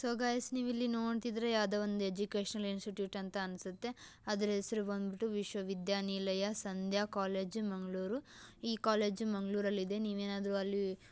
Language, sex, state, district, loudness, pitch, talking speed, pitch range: Kannada, female, Karnataka, Dakshina Kannada, -38 LUFS, 205 Hz, 120 wpm, 195-220 Hz